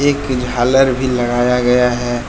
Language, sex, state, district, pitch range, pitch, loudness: Hindi, male, Jharkhand, Deoghar, 120-130 Hz, 125 Hz, -14 LUFS